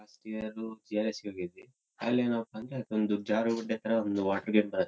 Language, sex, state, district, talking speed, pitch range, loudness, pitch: Kannada, male, Karnataka, Shimoga, 195 wpm, 105-115 Hz, -32 LUFS, 110 Hz